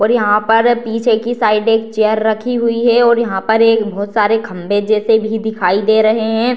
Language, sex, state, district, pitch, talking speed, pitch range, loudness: Hindi, female, Bihar, Darbhanga, 220 Hz, 220 wpm, 215-230 Hz, -14 LUFS